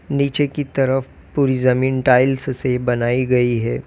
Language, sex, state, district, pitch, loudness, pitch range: Hindi, male, Uttar Pradesh, Lalitpur, 130 Hz, -18 LUFS, 125-135 Hz